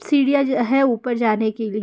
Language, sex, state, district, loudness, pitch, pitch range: Hindi, female, Bihar, Jamui, -19 LUFS, 245 Hz, 220-275 Hz